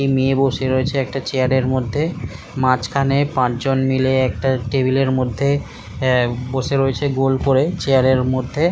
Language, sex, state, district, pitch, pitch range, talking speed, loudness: Bengali, male, West Bengal, Kolkata, 130 Hz, 130-135 Hz, 105 wpm, -18 LUFS